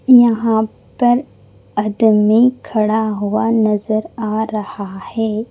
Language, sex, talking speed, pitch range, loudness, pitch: Hindi, female, 100 wpm, 215-230 Hz, -16 LUFS, 220 Hz